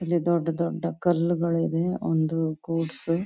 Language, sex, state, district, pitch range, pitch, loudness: Kannada, female, Karnataka, Chamarajanagar, 165-170 Hz, 165 Hz, -26 LUFS